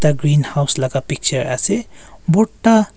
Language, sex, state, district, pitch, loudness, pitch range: Nagamese, male, Nagaland, Kohima, 150 Hz, -17 LUFS, 140-205 Hz